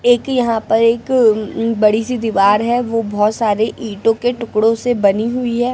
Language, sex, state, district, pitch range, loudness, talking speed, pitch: Hindi, female, Delhi, New Delhi, 215-240 Hz, -15 LUFS, 190 wpm, 230 Hz